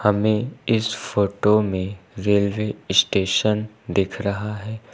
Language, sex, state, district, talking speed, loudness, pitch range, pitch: Hindi, male, Uttar Pradesh, Lucknow, 110 wpm, -22 LUFS, 100-110 Hz, 105 Hz